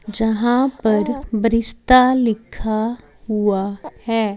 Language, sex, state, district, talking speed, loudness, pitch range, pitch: Hindi, female, Chandigarh, Chandigarh, 80 wpm, -18 LUFS, 215-240 Hz, 225 Hz